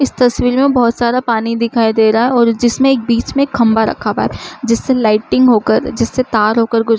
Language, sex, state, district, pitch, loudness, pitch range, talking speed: Hindi, female, Uttar Pradesh, Muzaffarnagar, 235 Hz, -13 LUFS, 230-255 Hz, 240 wpm